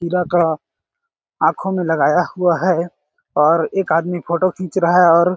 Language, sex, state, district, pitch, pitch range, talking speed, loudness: Hindi, male, Chhattisgarh, Balrampur, 180 Hz, 170-185 Hz, 180 wpm, -17 LUFS